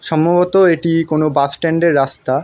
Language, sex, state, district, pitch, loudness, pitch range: Bengali, male, West Bengal, North 24 Parganas, 160 Hz, -14 LUFS, 140-170 Hz